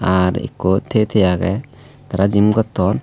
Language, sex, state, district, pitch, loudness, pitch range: Chakma, male, Tripura, Unakoti, 100 Hz, -17 LUFS, 95-110 Hz